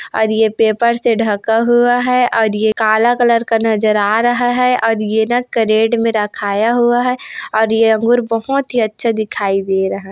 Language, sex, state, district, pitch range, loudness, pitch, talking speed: Hindi, female, Chhattisgarh, Korba, 215-240 Hz, -14 LUFS, 225 Hz, 120 wpm